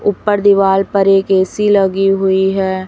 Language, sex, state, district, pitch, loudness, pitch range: Hindi, female, Chhattisgarh, Raipur, 195 Hz, -13 LUFS, 190-200 Hz